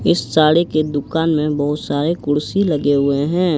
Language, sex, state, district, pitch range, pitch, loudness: Hindi, male, Jharkhand, Ranchi, 145-160 Hz, 150 Hz, -17 LUFS